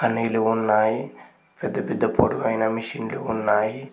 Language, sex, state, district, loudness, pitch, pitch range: Telugu, male, Telangana, Mahabubabad, -23 LUFS, 110 Hz, 110-115 Hz